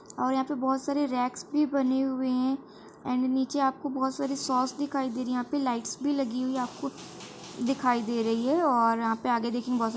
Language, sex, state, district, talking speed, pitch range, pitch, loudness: Hindi, female, Uttar Pradesh, Varanasi, 245 wpm, 245-275 Hz, 260 Hz, -28 LUFS